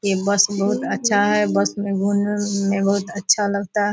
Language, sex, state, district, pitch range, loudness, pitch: Hindi, female, Bihar, Purnia, 200-205 Hz, -19 LUFS, 200 Hz